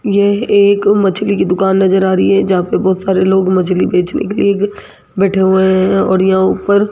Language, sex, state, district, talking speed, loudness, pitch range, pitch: Hindi, female, Rajasthan, Jaipur, 210 wpm, -12 LUFS, 185-200 Hz, 190 Hz